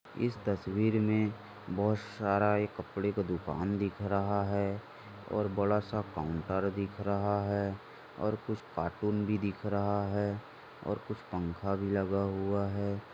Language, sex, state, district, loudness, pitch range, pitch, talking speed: Hindi, male, Maharashtra, Dhule, -33 LUFS, 100-105 Hz, 100 Hz, 145 wpm